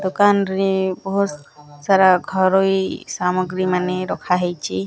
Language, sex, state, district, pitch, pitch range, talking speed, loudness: Odia, male, Odisha, Nuapada, 185 Hz, 180-195 Hz, 110 wpm, -19 LUFS